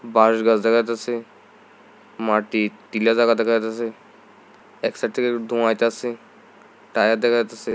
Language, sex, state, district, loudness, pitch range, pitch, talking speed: Bengali, male, Tripura, South Tripura, -21 LUFS, 110-115 Hz, 115 Hz, 125 wpm